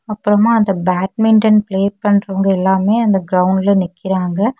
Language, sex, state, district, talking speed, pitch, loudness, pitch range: Tamil, female, Tamil Nadu, Kanyakumari, 115 wpm, 200 Hz, -14 LUFS, 190-215 Hz